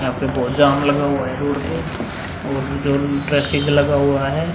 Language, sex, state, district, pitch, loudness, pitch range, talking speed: Hindi, male, Bihar, Vaishali, 140 Hz, -19 LUFS, 135-145 Hz, 185 wpm